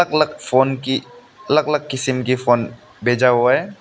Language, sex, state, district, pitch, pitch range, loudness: Hindi, male, Meghalaya, West Garo Hills, 130 Hz, 125-150 Hz, -18 LUFS